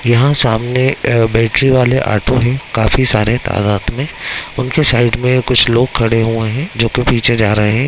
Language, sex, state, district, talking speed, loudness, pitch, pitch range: Hindi, male, Bihar, Begusarai, 190 wpm, -13 LUFS, 120 Hz, 115-130 Hz